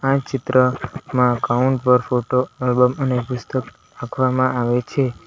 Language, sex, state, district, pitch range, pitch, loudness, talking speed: Gujarati, male, Gujarat, Valsad, 125-130 Hz, 125 Hz, -19 LUFS, 115 wpm